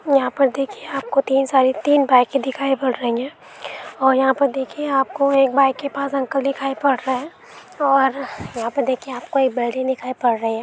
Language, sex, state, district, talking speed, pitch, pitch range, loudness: Hindi, female, Andhra Pradesh, Guntur, 190 wpm, 270 Hz, 260-275 Hz, -19 LUFS